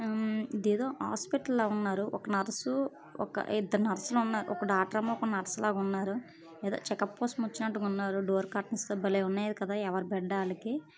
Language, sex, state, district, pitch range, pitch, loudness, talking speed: Telugu, female, Andhra Pradesh, Chittoor, 195-225 Hz, 210 Hz, -33 LUFS, 170 wpm